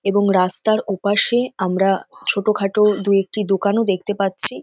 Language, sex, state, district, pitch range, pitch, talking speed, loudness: Bengali, female, West Bengal, North 24 Parganas, 195-210 Hz, 200 Hz, 115 wpm, -18 LUFS